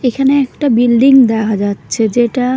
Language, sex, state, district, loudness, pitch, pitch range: Bengali, female, Odisha, Nuapada, -12 LUFS, 245 Hz, 225-265 Hz